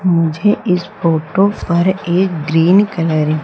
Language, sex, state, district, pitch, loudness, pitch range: Hindi, female, Madhya Pradesh, Umaria, 175 Hz, -14 LUFS, 160-190 Hz